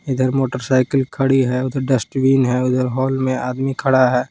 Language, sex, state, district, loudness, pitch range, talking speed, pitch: Hindi, male, Jharkhand, Palamu, -18 LUFS, 130-135 Hz, 195 wpm, 130 Hz